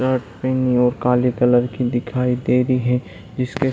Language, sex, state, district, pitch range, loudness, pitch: Hindi, male, Bihar, Saran, 125-130 Hz, -19 LUFS, 125 Hz